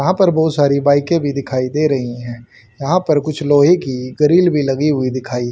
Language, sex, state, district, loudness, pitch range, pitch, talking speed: Hindi, male, Haryana, Charkhi Dadri, -15 LUFS, 130-155 Hz, 145 Hz, 215 wpm